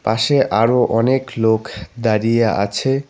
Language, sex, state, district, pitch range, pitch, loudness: Bengali, male, West Bengal, Cooch Behar, 110-130 Hz, 115 Hz, -17 LUFS